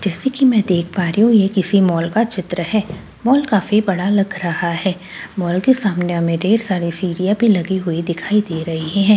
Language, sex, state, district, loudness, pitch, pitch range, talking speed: Hindi, female, Delhi, New Delhi, -17 LUFS, 190 Hz, 175-210 Hz, 230 wpm